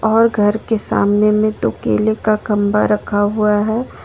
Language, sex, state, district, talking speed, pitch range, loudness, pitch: Hindi, female, Jharkhand, Ranchi, 175 wpm, 210-220 Hz, -16 LUFS, 215 Hz